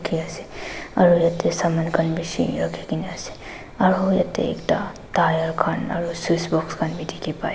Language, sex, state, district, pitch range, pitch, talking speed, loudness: Nagamese, female, Nagaland, Dimapur, 165-180 Hz, 170 Hz, 145 wpm, -22 LUFS